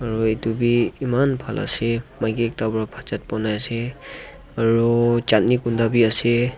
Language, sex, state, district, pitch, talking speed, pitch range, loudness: Nagamese, male, Nagaland, Dimapur, 115 Hz, 165 wpm, 110-120 Hz, -21 LUFS